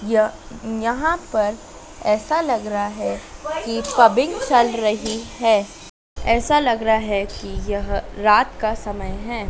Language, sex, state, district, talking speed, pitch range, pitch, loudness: Hindi, female, Madhya Pradesh, Dhar, 135 wpm, 210-240 Hz, 225 Hz, -20 LUFS